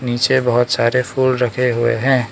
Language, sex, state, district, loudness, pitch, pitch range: Hindi, male, Arunachal Pradesh, Lower Dibang Valley, -16 LUFS, 125 Hz, 120-130 Hz